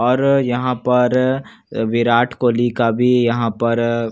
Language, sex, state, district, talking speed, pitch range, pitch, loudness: Hindi, male, Bihar, Katihar, 175 wpm, 115-125 Hz, 120 Hz, -17 LUFS